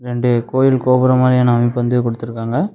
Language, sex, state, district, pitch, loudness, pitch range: Tamil, male, Tamil Nadu, Namakkal, 125 Hz, -15 LUFS, 120-130 Hz